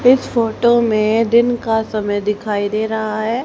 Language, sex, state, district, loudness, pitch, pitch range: Hindi, female, Haryana, Rohtak, -16 LUFS, 220 Hz, 215-235 Hz